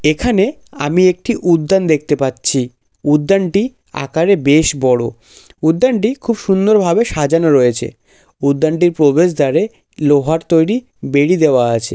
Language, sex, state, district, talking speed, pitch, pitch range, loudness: Bengali, male, West Bengal, Jalpaiguri, 115 wpm, 160 Hz, 140-195 Hz, -14 LUFS